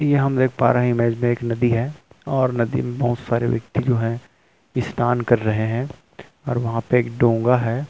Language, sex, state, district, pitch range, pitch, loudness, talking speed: Hindi, male, Chhattisgarh, Rajnandgaon, 115-125 Hz, 120 Hz, -21 LUFS, 220 wpm